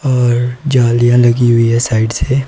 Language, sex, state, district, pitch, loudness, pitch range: Hindi, male, Himachal Pradesh, Shimla, 120 Hz, -12 LUFS, 120-125 Hz